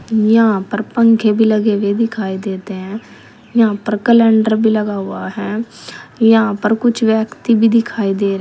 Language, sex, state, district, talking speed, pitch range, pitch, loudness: Hindi, female, Uttar Pradesh, Saharanpur, 180 wpm, 205-225 Hz, 220 Hz, -15 LUFS